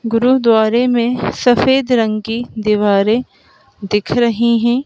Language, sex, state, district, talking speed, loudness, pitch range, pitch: Hindi, male, Madhya Pradesh, Bhopal, 110 wpm, -14 LUFS, 220-245 Hz, 235 Hz